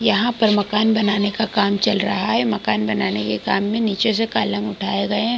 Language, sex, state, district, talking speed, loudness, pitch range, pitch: Hindi, female, Chhattisgarh, Bilaspur, 235 wpm, -19 LUFS, 200-220 Hz, 205 Hz